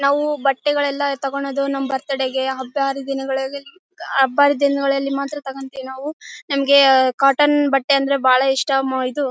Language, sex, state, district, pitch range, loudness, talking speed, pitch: Kannada, female, Karnataka, Bellary, 270-280 Hz, -18 LUFS, 140 wpm, 275 Hz